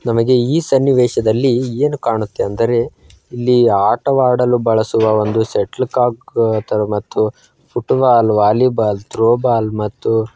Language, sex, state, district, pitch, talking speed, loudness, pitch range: Kannada, male, Karnataka, Bijapur, 115 Hz, 115 wpm, -15 LUFS, 110-125 Hz